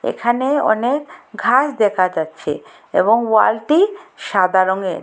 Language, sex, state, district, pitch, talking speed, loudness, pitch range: Bengali, female, Assam, Hailakandi, 225 Hz, 105 wpm, -17 LUFS, 190-290 Hz